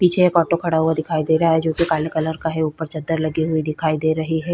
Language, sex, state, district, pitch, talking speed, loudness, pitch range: Hindi, female, Bihar, Vaishali, 160 Hz, 305 wpm, -20 LUFS, 160-165 Hz